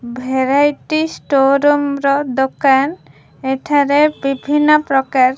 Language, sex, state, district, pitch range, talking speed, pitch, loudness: Odia, female, Odisha, Khordha, 265-290 Hz, 100 wpm, 280 Hz, -15 LUFS